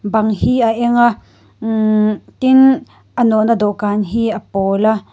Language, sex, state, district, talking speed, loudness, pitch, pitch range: Mizo, female, Mizoram, Aizawl, 185 wpm, -14 LUFS, 220 Hz, 215-240 Hz